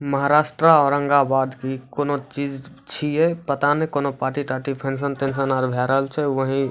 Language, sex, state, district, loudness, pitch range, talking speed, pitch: Maithili, male, Bihar, Supaul, -21 LUFS, 135-145 Hz, 170 wpm, 140 Hz